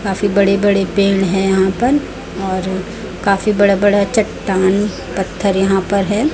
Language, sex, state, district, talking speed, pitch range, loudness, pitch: Hindi, female, Chhattisgarh, Raipur, 150 wpm, 190-205 Hz, -15 LUFS, 195 Hz